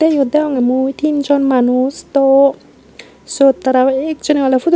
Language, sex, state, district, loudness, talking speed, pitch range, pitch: Chakma, female, Tripura, Unakoti, -13 LUFS, 140 wpm, 260-290 Hz, 275 Hz